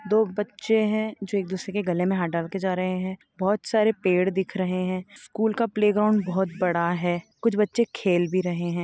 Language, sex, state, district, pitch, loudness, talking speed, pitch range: Hindi, male, Bihar, Saran, 190 Hz, -25 LUFS, 230 wpm, 180-215 Hz